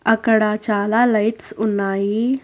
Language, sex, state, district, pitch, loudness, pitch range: Telugu, female, Telangana, Hyderabad, 215 Hz, -18 LUFS, 210-225 Hz